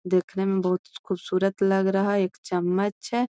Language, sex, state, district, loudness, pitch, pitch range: Magahi, female, Bihar, Gaya, -25 LUFS, 190 Hz, 180-195 Hz